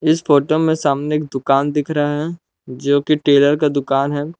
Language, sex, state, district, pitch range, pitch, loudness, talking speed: Hindi, male, Jharkhand, Palamu, 140-155 Hz, 145 Hz, -17 LUFS, 205 wpm